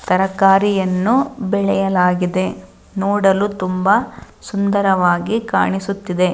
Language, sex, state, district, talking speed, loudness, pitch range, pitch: Kannada, female, Karnataka, Dharwad, 45 wpm, -17 LUFS, 185-200 Hz, 195 Hz